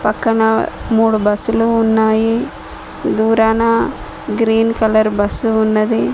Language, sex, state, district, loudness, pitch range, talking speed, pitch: Telugu, female, Telangana, Mahabubabad, -14 LUFS, 215-225 Hz, 90 wpm, 220 Hz